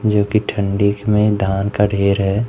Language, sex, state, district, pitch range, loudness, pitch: Hindi, male, Madhya Pradesh, Umaria, 100-105 Hz, -17 LUFS, 100 Hz